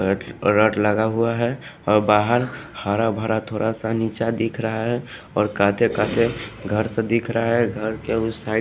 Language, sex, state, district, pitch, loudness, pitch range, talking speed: Hindi, male, Haryana, Jhajjar, 110 Hz, -21 LUFS, 105-115 Hz, 165 wpm